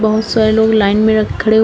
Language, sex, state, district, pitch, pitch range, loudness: Hindi, female, Uttar Pradesh, Shamli, 220 Hz, 215-220 Hz, -12 LUFS